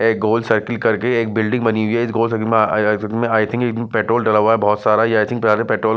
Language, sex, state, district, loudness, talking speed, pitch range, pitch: Hindi, male, Chandigarh, Chandigarh, -17 LUFS, 290 wpm, 110-115 Hz, 115 Hz